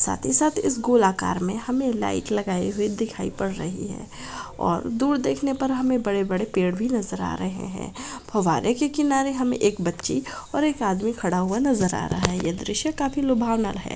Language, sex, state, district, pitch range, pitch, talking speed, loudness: Hindi, female, Bihar, Araria, 195-260 Hz, 225 Hz, 200 wpm, -24 LUFS